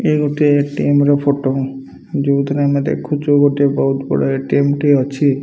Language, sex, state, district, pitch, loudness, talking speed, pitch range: Odia, male, Odisha, Malkangiri, 140 Hz, -15 LUFS, 155 wpm, 135-145 Hz